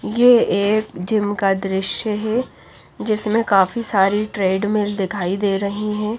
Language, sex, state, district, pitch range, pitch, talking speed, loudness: Hindi, female, Bihar, Patna, 195-215 Hz, 210 Hz, 135 wpm, -18 LUFS